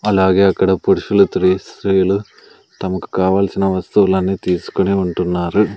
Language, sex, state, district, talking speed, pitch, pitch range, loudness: Telugu, male, Andhra Pradesh, Sri Satya Sai, 105 wpm, 95 Hz, 95-100 Hz, -16 LUFS